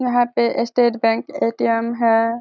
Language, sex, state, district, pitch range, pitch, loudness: Hindi, female, Bihar, Kishanganj, 225-240 Hz, 230 Hz, -19 LUFS